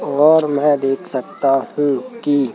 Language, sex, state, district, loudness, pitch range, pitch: Hindi, male, Madhya Pradesh, Bhopal, -17 LUFS, 135-150 Hz, 145 Hz